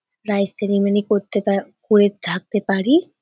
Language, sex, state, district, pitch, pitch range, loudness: Bengali, female, West Bengal, North 24 Parganas, 205 Hz, 195-210 Hz, -19 LUFS